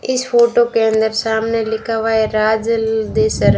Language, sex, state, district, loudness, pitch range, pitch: Hindi, female, Rajasthan, Bikaner, -16 LUFS, 220-230 Hz, 220 Hz